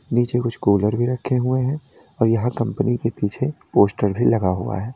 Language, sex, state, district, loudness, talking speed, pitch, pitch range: Hindi, male, Uttar Pradesh, Lalitpur, -21 LUFS, 205 wpm, 120 Hz, 105-125 Hz